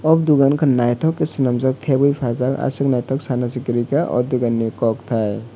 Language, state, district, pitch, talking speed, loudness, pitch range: Kokborok, Tripura, West Tripura, 130 Hz, 205 wpm, -19 LUFS, 120-140 Hz